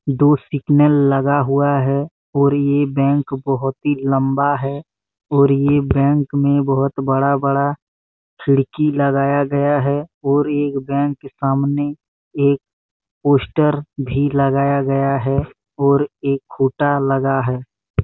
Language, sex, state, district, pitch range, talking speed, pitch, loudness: Hindi, male, Chhattisgarh, Bastar, 135-145 Hz, 130 wpm, 140 Hz, -17 LUFS